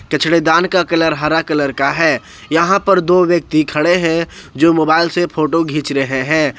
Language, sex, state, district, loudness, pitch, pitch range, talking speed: Hindi, male, Jharkhand, Ranchi, -14 LUFS, 160 Hz, 150-170 Hz, 190 wpm